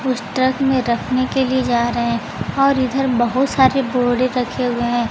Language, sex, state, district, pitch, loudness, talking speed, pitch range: Hindi, female, Bihar, Kaimur, 255 Hz, -18 LUFS, 190 wpm, 240-265 Hz